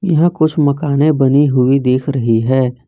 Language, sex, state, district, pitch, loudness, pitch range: Hindi, male, Jharkhand, Ranchi, 140 Hz, -13 LUFS, 130-150 Hz